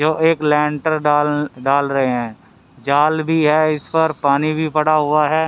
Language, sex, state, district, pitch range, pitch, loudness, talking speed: Hindi, male, Haryana, Rohtak, 145-155 Hz, 150 Hz, -17 LUFS, 185 wpm